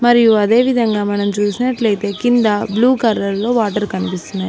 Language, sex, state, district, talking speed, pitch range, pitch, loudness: Telugu, female, Telangana, Mahabubabad, 135 wpm, 205-235 Hz, 210 Hz, -15 LUFS